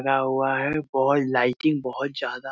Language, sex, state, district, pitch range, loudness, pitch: Hindi, male, Bihar, Muzaffarpur, 130-140 Hz, -24 LUFS, 135 Hz